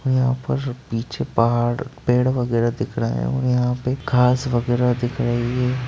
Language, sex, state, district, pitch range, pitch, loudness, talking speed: Hindi, male, Bihar, Jamui, 120-130 Hz, 125 Hz, -21 LUFS, 185 wpm